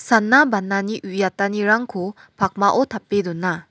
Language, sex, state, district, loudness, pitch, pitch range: Garo, female, Meghalaya, West Garo Hills, -19 LUFS, 200 Hz, 190-220 Hz